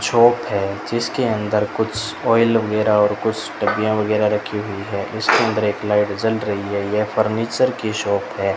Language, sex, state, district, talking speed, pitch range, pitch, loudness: Hindi, male, Rajasthan, Bikaner, 180 wpm, 105-110 Hz, 105 Hz, -19 LUFS